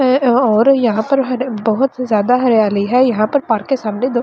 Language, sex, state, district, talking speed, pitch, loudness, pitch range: Hindi, female, Delhi, New Delhi, 185 wpm, 245 Hz, -14 LUFS, 220-260 Hz